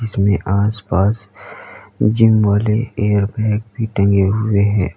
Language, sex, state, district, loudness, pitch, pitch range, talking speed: Hindi, male, Uttar Pradesh, Lalitpur, -16 LUFS, 105 Hz, 100-110 Hz, 120 wpm